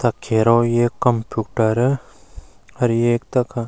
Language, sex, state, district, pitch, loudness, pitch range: Garhwali, male, Uttarakhand, Uttarkashi, 120 Hz, -19 LUFS, 115-125 Hz